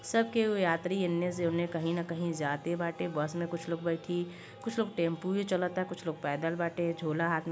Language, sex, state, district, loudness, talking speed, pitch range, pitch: Bhojpuri, male, Uttar Pradesh, Gorakhpur, -33 LUFS, 225 wpm, 165-180 Hz, 170 Hz